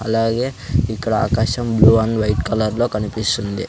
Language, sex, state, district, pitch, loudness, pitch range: Telugu, male, Andhra Pradesh, Sri Satya Sai, 110 Hz, -18 LUFS, 110-115 Hz